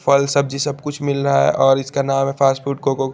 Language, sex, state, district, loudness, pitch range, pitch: Hindi, male, Chandigarh, Chandigarh, -18 LUFS, 135-140 Hz, 140 Hz